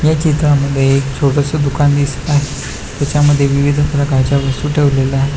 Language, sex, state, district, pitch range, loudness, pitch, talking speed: Marathi, male, Maharashtra, Pune, 135-145 Hz, -14 LUFS, 140 Hz, 155 wpm